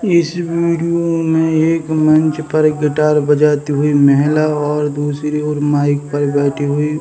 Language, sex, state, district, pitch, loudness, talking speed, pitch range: Hindi, male, Bihar, Samastipur, 150 Hz, -15 LUFS, 155 wpm, 145-160 Hz